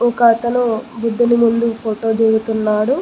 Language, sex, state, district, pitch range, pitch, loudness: Telugu, female, Telangana, Mahabubabad, 220-235 Hz, 230 Hz, -16 LUFS